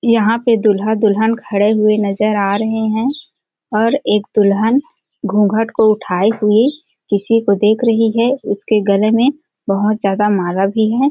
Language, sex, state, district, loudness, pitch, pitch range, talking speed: Hindi, female, Chhattisgarh, Balrampur, -15 LUFS, 215 Hz, 205-230 Hz, 150 wpm